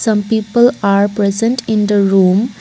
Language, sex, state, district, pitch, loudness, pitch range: English, female, Assam, Kamrup Metropolitan, 210 Hz, -13 LUFS, 200-225 Hz